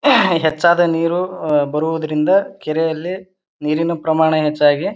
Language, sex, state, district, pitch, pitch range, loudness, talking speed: Kannada, male, Karnataka, Bijapur, 165 Hz, 155-185 Hz, -17 LUFS, 85 wpm